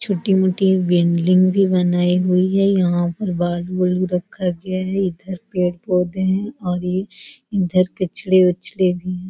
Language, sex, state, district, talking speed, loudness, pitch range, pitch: Hindi, female, Bihar, Jahanabad, 150 wpm, -19 LUFS, 180-190 Hz, 185 Hz